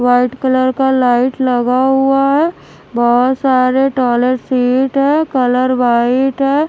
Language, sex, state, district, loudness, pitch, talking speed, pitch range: Hindi, female, Haryana, Charkhi Dadri, -13 LUFS, 255 Hz, 135 wpm, 250-270 Hz